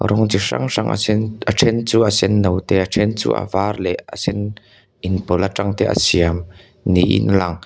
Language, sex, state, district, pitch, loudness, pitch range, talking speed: Mizo, male, Mizoram, Aizawl, 100 Hz, -18 LUFS, 95-105 Hz, 225 wpm